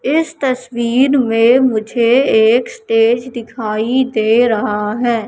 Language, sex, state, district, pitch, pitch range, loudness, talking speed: Hindi, female, Madhya Pradesh, Katni, 235 Hz, 225-255 Hz, -14 LUFS, 115 wpm